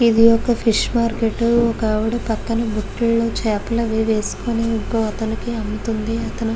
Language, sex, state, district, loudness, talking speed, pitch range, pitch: Telugu, female, Andhra Pradesh, Guntur, -19 LUFS, 145 wpm, 220-230 Hz, 225 Hz